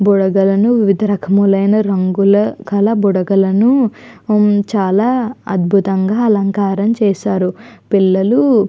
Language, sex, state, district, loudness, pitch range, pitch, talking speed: Telugu, female, Andhra Pradesh, Chittoor, -14 LUFS, 195-220 Hz, 200 Hz, 85 wpm